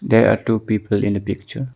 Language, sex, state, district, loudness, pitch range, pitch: English, male, Arunachal Pradesh, Longding, -19 LUFS, 100-115 Hz, 110 Hz